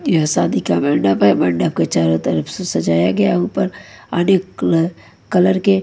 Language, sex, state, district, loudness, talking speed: Hindi, female, Haryana, Charkhi Dadri, -16 LUFS, 175 wpm